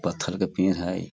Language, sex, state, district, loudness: Hindi, male, Bihar, Sitamarhi, -26 LUFS